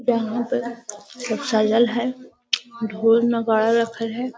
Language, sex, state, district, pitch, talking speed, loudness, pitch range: Magahi, female, Bihar, Gaya, 230 Hz, 135 wpm, -21 LUFS, 225-240 Hz